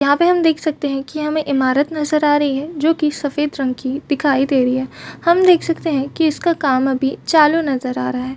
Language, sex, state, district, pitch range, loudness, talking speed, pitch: Hindi, female, Chhattisgarh, Bastar, 270-310 Hz, -17 LUFS, 245 wpm, 290 Hz